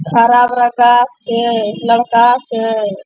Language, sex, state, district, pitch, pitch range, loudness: Angika, female, Bihar, Bhagalpur, 235 Hz, 225-240 Hz, -12 LUFS